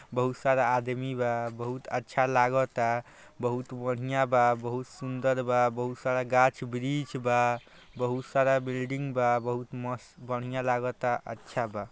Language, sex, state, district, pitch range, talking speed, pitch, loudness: Bhojpuri, male, Bihar, East Champaran, 120-130 Hz, 140 wpm, 125 Hz, -29 LUFS